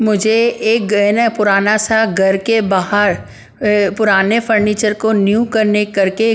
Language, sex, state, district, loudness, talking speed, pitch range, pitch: Hindi, female, Punjab, Pathankot, -14 LUFS, 180 wpm, 205-225 Hz, 210 Hz